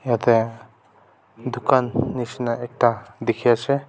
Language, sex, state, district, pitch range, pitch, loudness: Nagamese, male, Nagaland, Kohima, 115-125 Hz, 120 Hz, -22 LUFS